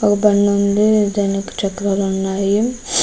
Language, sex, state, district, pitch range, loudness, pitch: Telugu, female, Andhra Pradesh, Guntur, 195-210 Hz, -17 LUFS, 200 Hz